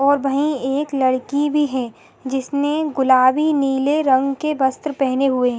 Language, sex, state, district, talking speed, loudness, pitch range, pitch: Hindi, female, Jharkhand, Sahebganj, 160 wpm, -18 LUFS, 260-295 Hz, 275 Hz